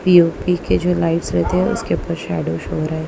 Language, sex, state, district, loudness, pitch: Hindi, female, Punjab, Kapurthala, -18 LUFS, 165 Hz